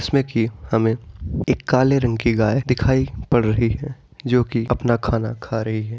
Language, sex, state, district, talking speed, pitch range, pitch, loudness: Hindi, male, Uttar Pradesh, Etah, 190 wpm, 110-130 Hz, 115 Hz, -20 LUFS